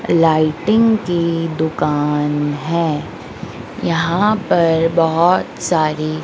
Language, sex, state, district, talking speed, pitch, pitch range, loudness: Hindi, female, Madhya Pradesh, Dhar, 75 wpm, 165 Hz, 155-170 Hz, -16 LUFS